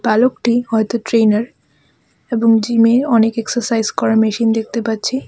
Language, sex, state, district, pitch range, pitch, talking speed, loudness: Bengali, female, West Bengal, Alipurduar, 220-235 Hz, 230 Hz, 125 wpm, -15 LUFS